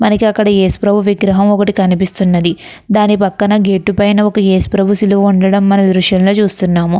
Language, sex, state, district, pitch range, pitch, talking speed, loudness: Telugu, female, Andhra Pradesh, Krishna, 190-205 Hz, 200 Hz, 170 wpm, -11 LUFS